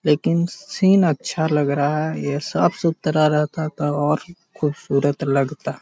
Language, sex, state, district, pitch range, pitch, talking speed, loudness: Magahi, male, Bihar, Jahanabad, 145-165 Hz, 150 Hz, 145 wpm, -20 LUFS